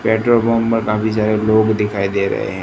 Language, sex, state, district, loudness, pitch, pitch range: Hindi, male, Gujarat, Gandhinagar, -16 LUFS, 110 Hz, 105-115 Hz